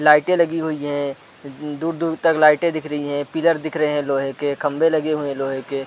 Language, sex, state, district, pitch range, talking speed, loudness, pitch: Hindi, male, Chhattisgarh, Rajnandgaon, 145-160 Hz, 235 wpm, -20 LUFS, 150 Hz